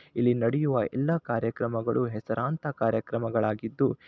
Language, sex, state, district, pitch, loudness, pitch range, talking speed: Kannada, male, Karnataka, Shimoga, 115 Hz, -28 LUFS, 115-135 Hz, 90 wpm